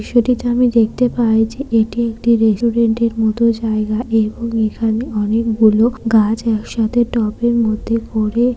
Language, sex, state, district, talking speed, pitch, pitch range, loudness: Bengali, female, West Bengal, Malda, 140 wpm, 230 Hz, 220-235 Hz, -16 LUFS